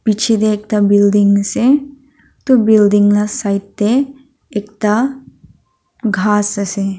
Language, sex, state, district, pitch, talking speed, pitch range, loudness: Nagamese, female, Nagaland, Dimapur, 210 Hz, 110 wpm, 205-250 Hz, -14 LUFS